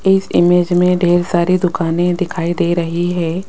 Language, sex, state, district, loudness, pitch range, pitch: Hindi, female, Rajasthan, Jaipur, -15 LUFS, 170-180 Hz, 175 Hz